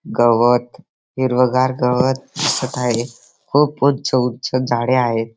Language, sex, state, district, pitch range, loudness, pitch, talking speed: Marathi, male, Maharashtra, Dhule, 120-130 Hz, -17 LUFS, 125 Hz, 125 wpm